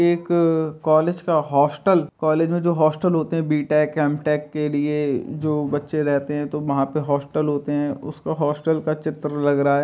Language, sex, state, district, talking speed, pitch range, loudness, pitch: Hindi, male, Uttar Pradesh, Jalaun, 190 wpm, 145-155 Hz, -21 LUFS, 150 Hz